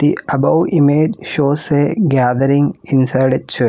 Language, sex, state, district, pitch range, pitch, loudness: English, female, Telangana, Hyderabad, 130-150 Hz, 145 Hz, -14 LUFS